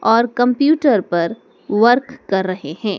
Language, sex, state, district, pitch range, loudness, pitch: Hindi, female, Madhya Pradesh, Dhar, 190-250 Hz, -17 LUFS, 225 Hz